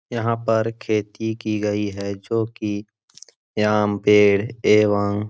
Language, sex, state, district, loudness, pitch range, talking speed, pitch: Hindi, male, Bihar, Supaul, -21 LUFS, 105-110 Hz, 115 wpm, 105 Hz